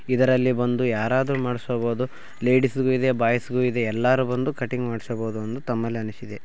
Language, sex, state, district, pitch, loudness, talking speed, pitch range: Kannada, male, Karnataka, Raichur, 125 Hz, -24 LUFS, 165 wpm, 115-130 Hz